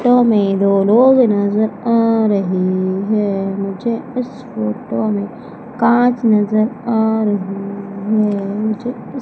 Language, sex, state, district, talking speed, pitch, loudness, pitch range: Hindi, female, Madhya Pradesh, Umaria, 115 wpm, 215 Hz, -16 LUFS, 200-235 Hz